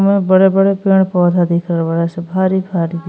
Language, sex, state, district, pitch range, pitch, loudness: Bhojpuri, female, Uttar Pradesh, Ghazipur, 170-190 Hz, 180 Hz, -14 LUFS